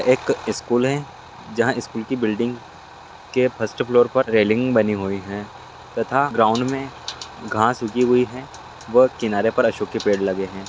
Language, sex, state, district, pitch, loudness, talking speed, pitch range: Hindi, male, Bihar, Lakhisarai, 115 Hz, -21 LUFS, 170 wpm, 105-125 Hz